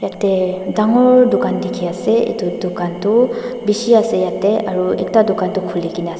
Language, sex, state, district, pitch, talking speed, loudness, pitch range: Nagamese, female, Nagaland, Dimapur, 205 Hz, 155 wpm, -16 LUFS, 180-230 Hz